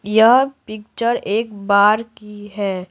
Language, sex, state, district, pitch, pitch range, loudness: Hindi, female, Bihar, Patna, 210 Hz, 205-230 Hz, -17 LUFS